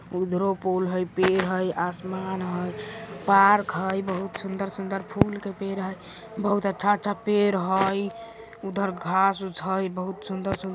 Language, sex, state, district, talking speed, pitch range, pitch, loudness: Bajjika, female, Bihar, Vaishali, 150 wpm, 185-200 Hz, 195 Hz, -26 LUFS